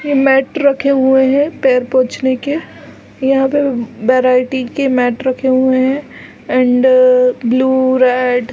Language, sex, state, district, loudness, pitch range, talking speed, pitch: Hindi, female, Chhattisgarh, Balrampur, -13 LUFS, 255-270 Hz, 140 wpm, 260 Hz